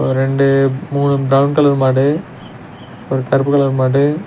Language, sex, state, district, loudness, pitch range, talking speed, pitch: Tamil, male, Tamil Nadu, Nilgiris, -14 LUFS, 135-140 Hz, 125 wpm, 135 Hz